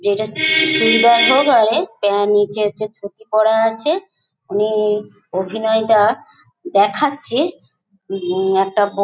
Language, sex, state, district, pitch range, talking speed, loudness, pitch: Bengali, female, West Bengal, Dakshin Dinajpur, 200-225 Hz, 105 wpm, -16 LUFS, 215 Hz